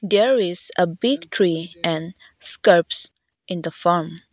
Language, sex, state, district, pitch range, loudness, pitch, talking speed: English, female, Arunachal Pradesh, Lower Dibang Valley, 165-200 Hz, -20 LUFS, 175 Hz, 140 wpm